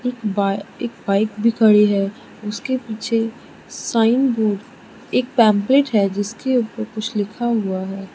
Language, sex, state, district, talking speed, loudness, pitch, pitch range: Hindi, female, Arunachal Pradesh, Lower Dibang Valley, 140 wpm, -19 LUFS, 220 Hz, 205-235 Hz